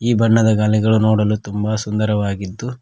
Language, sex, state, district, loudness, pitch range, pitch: Kannada, male, Karnataka, Koppal, -17 LUFS, 105-110 Hz, 110 Hz